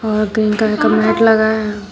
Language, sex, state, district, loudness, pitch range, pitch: Hindi, female, Uttar Pradesh, Shamli, -14 LUFS, 215-220 Hz, 215 Hz